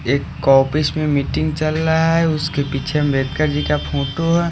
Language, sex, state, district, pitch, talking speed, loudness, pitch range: Hindi, male, Haryana, Rohtak, 150 Hz, 185 wpm, -18 LUFS, 140-155 Hz